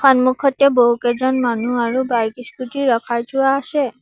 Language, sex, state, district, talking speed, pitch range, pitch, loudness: Assamese, female, Assam, Sonitpur, 135 wpm, 240-270 Hz, 255 Hz, -17 LUFS